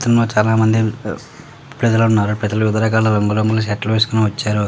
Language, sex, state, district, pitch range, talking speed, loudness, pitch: Telugu, male, Telangana, Karimnagar, 105-115 Hz, 130 wpm, -16 LUFS, 110 Hz